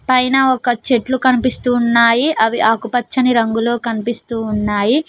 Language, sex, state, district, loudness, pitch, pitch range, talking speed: Telugu, female, Telangana, Mahabubabad, -15 LUFS, 240 Hz, 230-255 Hz, 120 wpm